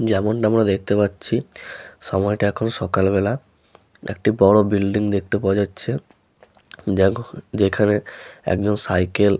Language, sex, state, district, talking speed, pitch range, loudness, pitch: Bengali, male, West Bengal, Malda, 135 wpm, 95-105 Hz, -20 LUFS, 100 Hz